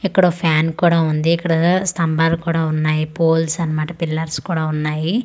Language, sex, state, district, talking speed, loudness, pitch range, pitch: Telugu, female, Andhra Pradesh, Manyam, 170 wpm, -18 LUFS, 155-170 Hz, 165 Hz